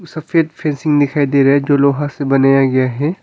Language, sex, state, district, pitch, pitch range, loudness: Hindi, male, Arunachal Pradesh, Longding, 145 Hz, 135-150 Hz, -14 LUFS